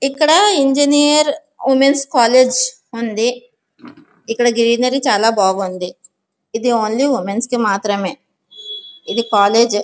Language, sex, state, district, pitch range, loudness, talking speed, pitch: Telugu, female, Andhra Pradesh, Visakhapatnam, 225-280 Hz, -15 LUFS, 105 wpm, 245 Hz